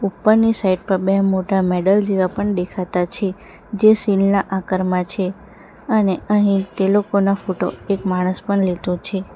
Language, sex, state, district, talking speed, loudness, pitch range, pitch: Gujarati, female, Gujarat, Valsad, 160 wpm, -18 LUFS, 185-205 Hz, 195 Hz